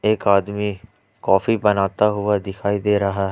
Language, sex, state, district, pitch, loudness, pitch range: Hindi, male, Jharkhand, Ranchi, 100 Hz, -20 LUFS, 100-105 Hz